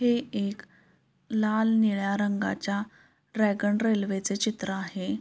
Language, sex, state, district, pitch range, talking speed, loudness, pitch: Marathi, female, Maharashtra, Pune, 200-220 Hz, 115 wpm, -27 LUFS, 205 Hz